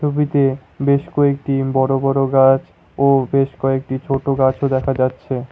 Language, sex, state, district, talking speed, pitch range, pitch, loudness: Bengali, male, West Bengal, Cooch Behar, 150 wpm, 135-140 Hz, 135 Hz, -17 LUFS